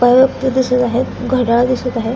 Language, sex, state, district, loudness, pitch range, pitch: Marathi, female, Maharashtra, Aurangabad, -15 LUFS, 245-255 Hz, 250 Hz